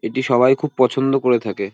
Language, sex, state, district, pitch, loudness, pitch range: Bengali, male, West Bengal, North 24 Parganas, 130 Hz, -17 LUFS, 120-135 Hz